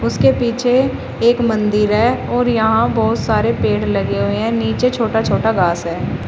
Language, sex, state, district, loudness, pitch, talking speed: Hindi, female, Uttar Pradesh, Shamli, -16 LUFS, 210 Hz, 170 wpm